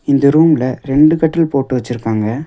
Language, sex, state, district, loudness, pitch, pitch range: Tamil, male, Tamil Nadu, Nilgiris, -13 LUFS, 140 Hz, 125-155 Hz